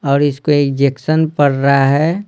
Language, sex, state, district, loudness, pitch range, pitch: Hindi, male, Bihar, Patna, -14 LUFS, 140-155 Hz, 145 Hz